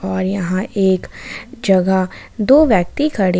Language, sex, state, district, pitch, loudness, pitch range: Hindi, female, Jharkhand, Ranchi, 190 Hz, -16 LUFS, 185-235 Hz